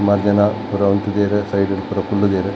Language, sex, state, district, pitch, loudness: Tulu, male, Karnataka, Dakshina Kannada, 100 Hz, -18 LUFS